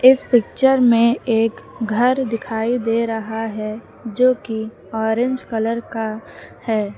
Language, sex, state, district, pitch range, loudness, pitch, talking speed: Hindi, female, Uttar Pradesh, Lucknow, 220-245 Hz, -19 LUFS, 225 Hz, 130 wpm